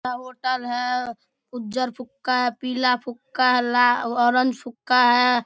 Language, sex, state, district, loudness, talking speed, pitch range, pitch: Maithili, male, Bihar, Darbhanga, -21 LUFS, 130 wpm, 245-255 Hz, 250 Hz